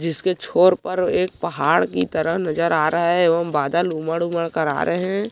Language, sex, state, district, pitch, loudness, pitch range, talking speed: Hindi, male, Chhattisgarh, Kabirdham, 170 Hz, -20 LUFS, 160-180 Hz, 215 wpm